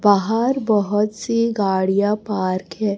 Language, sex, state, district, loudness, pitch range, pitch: Hindi, female, Chhattisgarh, Raipur, -19 LUFS, 195-220 Hz, 210 Hz